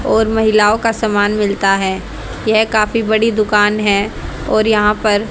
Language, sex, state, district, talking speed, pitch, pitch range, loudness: Hindi, female, Haryana, Rohtak, 160 wpm, 210 Hz, 205-220 Hz, -14 LUFS